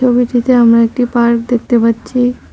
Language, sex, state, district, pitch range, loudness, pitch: Bengali, female, West Bengal, Cooch Behar, 235-245 Hz, -12 LUFS, 240 Hz